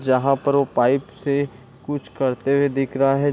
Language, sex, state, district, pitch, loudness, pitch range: Hindi, male, Bihar, East Champaran, 135 Hz, -21 LUFS, 130-140 Hz